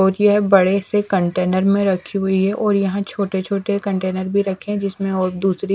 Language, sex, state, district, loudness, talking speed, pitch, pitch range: Hindi, female, Chhattisgarh, Raipur, -18 LUFS, 220 wpm, 195 Hz, 190-200 Hz